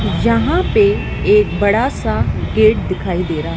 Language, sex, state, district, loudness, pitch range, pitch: Hindi, female, Madhya Pradesh, Dhar, -15 LUFS, 180-225 Hz, 210 Hz